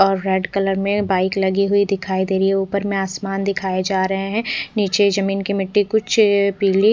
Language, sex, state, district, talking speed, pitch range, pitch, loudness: Hindi, female, Odisha, Khordha, 210 wpm, 190-200 Hz, 195 Hz, -19 LUFS